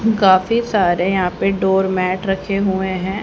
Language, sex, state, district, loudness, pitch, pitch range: Hindi, female, Haryana, Charkhi Dadri, -17 LUFS, 190 Hz, 185-200 Hz